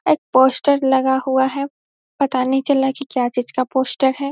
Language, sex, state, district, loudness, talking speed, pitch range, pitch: Hindi, female, Bihar, Saharsa, -18 LUFS, 220 wpm, 260-275 Hz, 265 Hz